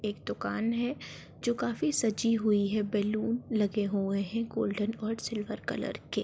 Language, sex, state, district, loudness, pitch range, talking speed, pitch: Hindi, female, Uttar Pradesh, Ghazipur, -31 LUFS, 205-230 Hz, 165 wpm, 215 Hz